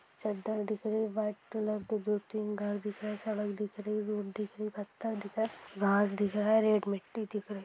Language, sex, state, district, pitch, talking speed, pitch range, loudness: Hindi, female, Maharashtra, Nagpur, 210 Hz, 235 wpm, 205-215 Hz, -34 LUFS